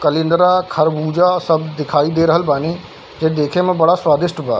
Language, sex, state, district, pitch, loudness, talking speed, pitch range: Hindi, male, Bihar, Darbhanga, 160 Hz, -15 LUFS, 170 wpm, 155-175 Hz